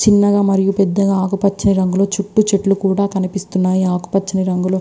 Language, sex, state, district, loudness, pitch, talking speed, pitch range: Telugu, female, Andhra Pradesh, Visakhapatnam, -16 LUFS, 195 Hz, 135 wpm, 190-200 Hz